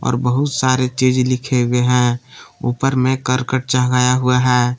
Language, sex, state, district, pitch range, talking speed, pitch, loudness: Hindi, male, Jharkhand, Palamu, 125-130 Hz, 165 wpm, 125 Hz, -16 LUFS